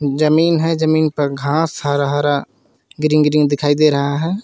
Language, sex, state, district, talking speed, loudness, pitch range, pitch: Hindi, male, Jharkhand, Garhwa, 175 wpm, -16 LUFS, 145-155 Hz, 150 Hz